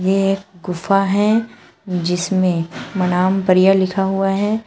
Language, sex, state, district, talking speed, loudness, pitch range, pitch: Hindi, female, Uttar Pradesh, Shamli, 130 wpm, -17 LUFS, 180-195 Hz, 195 Hz